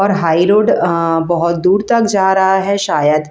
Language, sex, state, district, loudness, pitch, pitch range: Hindi, female, Delhi, New Delhi, -13 LUFS, 190 Hz, 170-200 Hz